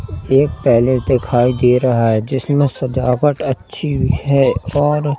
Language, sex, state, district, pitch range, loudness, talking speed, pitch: Hindi, male, Madhya Pradesh, Katni, 125-140 Hz, -15 LUFS, 140 wpm, 130 Hz